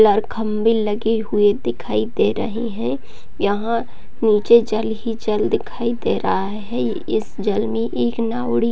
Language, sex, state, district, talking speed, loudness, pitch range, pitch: Hindi, female, Chhattisgarh, Raigarh, 150 wpm, -20 LUFS, 205-230 Hz, 220 Hz